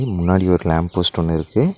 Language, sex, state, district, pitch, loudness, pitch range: Tamil, male, Tamil Nadu, Nilgiris, 90 Hz, -18 LUFS, 85-95 Hz